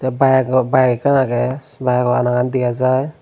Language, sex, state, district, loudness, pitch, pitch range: Chakma, male, Tripura, Unakoti, -16 LUFS, 130 Hz, 125-130 Hz